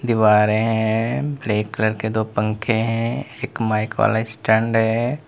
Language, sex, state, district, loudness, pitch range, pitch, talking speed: Hindi, male, Uttar Pradesh, Lalitpur, -20 LUFS, 110-115 Hz, 110 Hz, 150 wpm